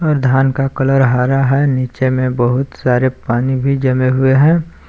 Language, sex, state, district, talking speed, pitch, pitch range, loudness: Hindi, male, Jharkhand, Palamu, 185 wpm, 130 Hz, 130-135 Hz, -14 LUFS